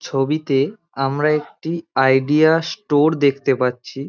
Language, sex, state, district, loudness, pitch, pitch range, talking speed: Bengali, male, West Bengal, Dakshin Dinajpur, -18 LUFS, 145 Hz, 135-160 Hz, 105 wpm